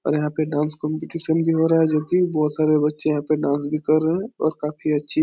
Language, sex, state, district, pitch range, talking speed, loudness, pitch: Hindi, male, Bihar, Supaul, 150-160 Hz, 285 wpm, -21 LUFS, 155 Hz